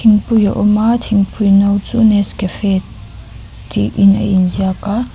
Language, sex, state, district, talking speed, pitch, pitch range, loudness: Mizo, female, Mizoram, Aizawl, 150 wpm, 200 Hz, 185-210 Hz, -13 LUFS